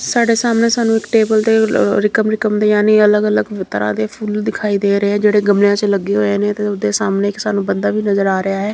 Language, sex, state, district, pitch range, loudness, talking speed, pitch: Punjabi, female, Chandigarh, Chandigarh, 200-215 Hz, -15 LUFS, 215 wpm, 210 Hz